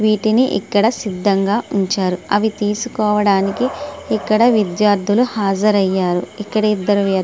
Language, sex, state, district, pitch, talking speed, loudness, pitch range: Telugu, female, Andhra Pradesh, Srikakulam, 205 Hz, 110 wpm, -17 LUFS, 195-215 Hz